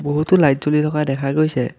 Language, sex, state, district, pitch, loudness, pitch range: Assamese, male, Assam, Kamrup Metropolitan, 150 Hz, -17 LUFS, 140-155 Hz